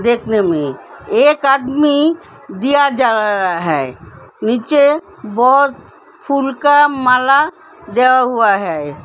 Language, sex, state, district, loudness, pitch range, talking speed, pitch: Hindi, female, Uttar Pradesh, Hamirpur, -14 LUFS, 205-285 Hz, 105 wpm, 255 Hz